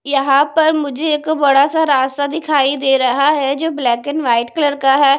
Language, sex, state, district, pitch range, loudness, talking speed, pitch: Hindi, female, Odisha, Nuapada, 270-305 Hz, -15 LUFS, 210 wpm, 285 Hz